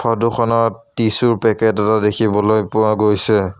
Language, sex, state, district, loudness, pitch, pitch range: Assamese, male, Assam, Sonitpur, -16 LUFS, 110 Hz, 105-115 Hz